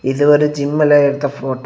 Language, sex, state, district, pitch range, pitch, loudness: Tamil, male, Tamil Nadu, Kanyakumari, 140-145 Hz, 145 Hz, -14 LUFS